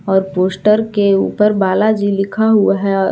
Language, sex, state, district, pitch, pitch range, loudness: Hindi, female, Jharkhand, Palamu, 200 Hz, 190-210 Hz, -14 LUFS